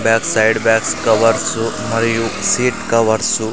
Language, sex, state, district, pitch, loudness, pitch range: Telugu, male, Andhra Pradesh, Sri Satya Sai, 115 Hz, -15 LUFS, 110-115 Hz